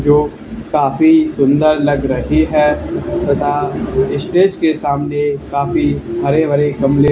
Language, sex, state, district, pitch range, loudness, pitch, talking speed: Hindi, male, Haryana, Charkhi Dadri, 140-155 Hz, -14 LUFS, 145 Hz, 120 wpm